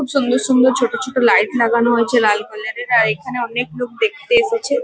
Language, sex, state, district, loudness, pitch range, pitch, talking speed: Bengali, female, West Bengal, Kolkata, -16 LUFS, 235-270 Hz, 245 Hz, 210 wpm